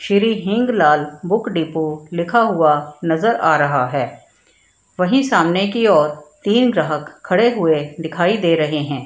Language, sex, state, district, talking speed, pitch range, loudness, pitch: Hindi, female, Bihar, Madhepura, 150 wpm, 150-220 Hz, -17 LUFS, 170 Hz